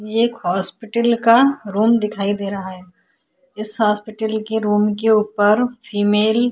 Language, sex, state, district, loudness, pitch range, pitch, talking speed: Hindi, female, Chhattisgarh, Korba, -17 LUFS, 205-235 Hz, 215 Hz, 155 wpm